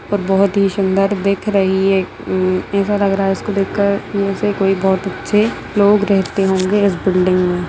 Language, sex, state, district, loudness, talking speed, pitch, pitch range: Hindi, female, Bihar, Samastipur, -16 LUFS, 205 wpm, 195 Hz, 190-200 Hz